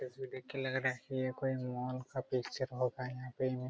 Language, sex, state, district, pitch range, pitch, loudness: Hindi, male, Bihar, Araria, 125-130 Hz, 130 Hz, -38 LUFS